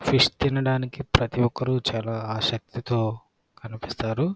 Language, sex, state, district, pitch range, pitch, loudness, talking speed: Telugu, male, Andhra Pradesh, Krishna, 110-130 Hz, 120 Hz, -25 LUFS, 80 wpm